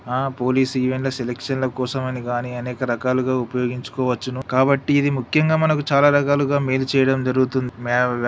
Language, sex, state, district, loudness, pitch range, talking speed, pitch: Telugu, male, Telangana, Karimnagar, -20 LUFS, 125-135 Hz, 150 wpm, 130 Hz